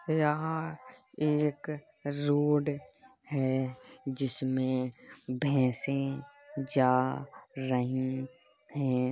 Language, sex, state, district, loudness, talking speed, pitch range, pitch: Hindi, female, Uttar Pradesh, Hamirpur, -31 LUFS, 60 wpm, 130-150 Hz, 140 Hz